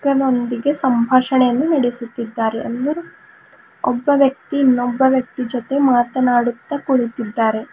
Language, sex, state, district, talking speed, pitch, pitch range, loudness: Kannada, female, Karnataka, Bidar, 85 wpm, 255 Hz, 240-280 Hz, -18 LUFS